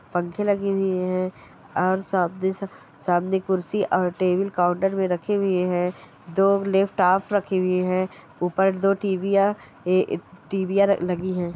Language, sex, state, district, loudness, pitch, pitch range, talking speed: Hindi, female, Goa, North and South Goa, -23 LUFS, 185 Hz, 180-195 Hz, 145 wpm